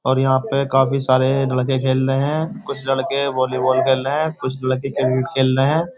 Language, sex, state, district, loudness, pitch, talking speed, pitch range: Hindi, male, Uttar Pradesh, Jyotiba Phule Nagar, -19 LUFS, 135 Hz, 210 wpm, 130-140 Hz